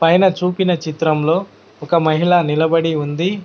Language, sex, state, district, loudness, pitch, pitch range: Telugu, male, Telangana, Mahabubabad, -16 LUFS, 165 Hz, 155-180 Hz